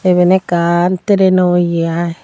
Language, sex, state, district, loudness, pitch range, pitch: Chakma, female, Tripura, Dhalai, -13 LUFS, 170-185 Hz, 175 Hz